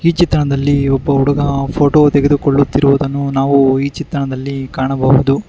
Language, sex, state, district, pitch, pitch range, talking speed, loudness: Kannada, male, Karnataka, Bangalore, 140 Hz, 135-145 Hz, 110 wpm, -13 LUFS